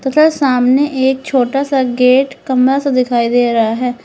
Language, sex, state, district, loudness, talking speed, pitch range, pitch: Hindi, female, Uttar Pradesh, Lalitpur, -13 LUFS, 180 wpm, 250-275 Hz, 260 Hz